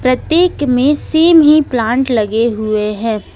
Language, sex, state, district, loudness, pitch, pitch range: Hindi, female, Jharkhand, Ranchi, -12 LUFS, 255 Hz, 225-305 Hz